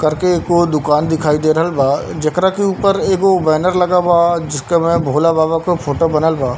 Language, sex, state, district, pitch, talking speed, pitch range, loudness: Hindi, male, Bihar, Darbhanga, 165 Hz, 200 wpm, 155-175 Hz, -14 LUFS